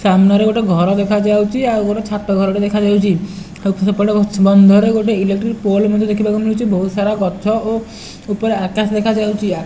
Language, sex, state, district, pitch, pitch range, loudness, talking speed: Odia, male, Odisha, Nuapada, 205 Hz, 195-215 Hz, -14 LUFS, 155 wpm